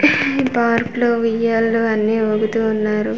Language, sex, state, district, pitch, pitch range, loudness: Telugu, female, Andhra Pradesh, Manyam, 225 Hz, 220-235 Hz, -17 LUFS